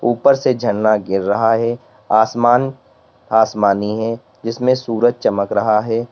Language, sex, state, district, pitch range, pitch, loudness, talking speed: Hindi, male, Uttar Pradesh, Lalitpur, 105-120 Hz, 115 Hz, -16 LUFS, 135 wpm